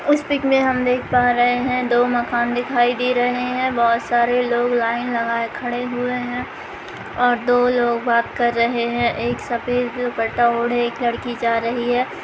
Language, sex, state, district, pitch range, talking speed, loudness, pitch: Hindi, female, Bihar, Begusarai, 235-245 Hz, 190 wpm, -19 LUFS, 245 Hz